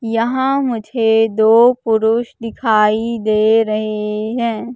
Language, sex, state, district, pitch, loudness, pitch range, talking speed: Hindi, female, Madhya Pradesh, Katni, 225 Hz, -15 LUFS, 220-235 Hz, 100 wpm